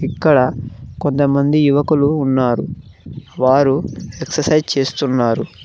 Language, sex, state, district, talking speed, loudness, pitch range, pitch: Telugu, male, Telangana, Mahabubabad, 75 wpm, -16 LUFS, 130-150 Hz, 140 Hz